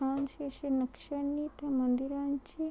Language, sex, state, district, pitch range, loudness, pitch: Marathi, female, Maharashtra, Chandrapur, 270-285 Hz, -34 LUFS, 280 Hz